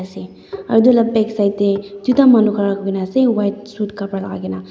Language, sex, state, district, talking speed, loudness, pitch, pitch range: Nagamese, female, Nagaland, Dimapur, 230 wpm, -16 LUFS, 205 Hz, 200-225 Hz